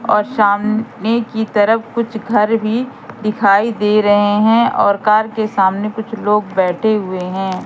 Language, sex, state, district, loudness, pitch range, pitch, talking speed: Hindi, female, Madhya Pradesh, Katni, -15 LUFS, 205-220 Hz, 215 Hz, 155 wpm